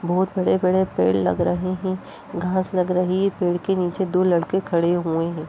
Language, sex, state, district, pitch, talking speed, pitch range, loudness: Hindi, female, Uttar Pradesh, Etah, 180 Hz, 205 wpm, 170-185 Hz, -21 LUFS